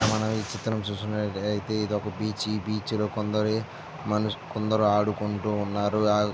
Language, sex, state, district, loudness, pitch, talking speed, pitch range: Telugu, male, Andhra Pradesh, Visakhapatnam, -27 LUFS, 105 Hz, 140 wpm, 105-110 Hz